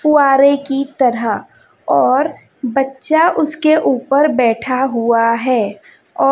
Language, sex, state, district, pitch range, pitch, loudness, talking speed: Hindi, female, Chhattisgarh, Raipur, 235-285 Hz, 270 Hz, -14 LUFS, 105 wpm